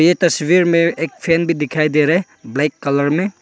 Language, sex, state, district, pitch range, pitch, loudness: Hindi, male, Arunachal Pradesh, Papum Pare, 150-170 Hz, 165 Hz, -16 LUFS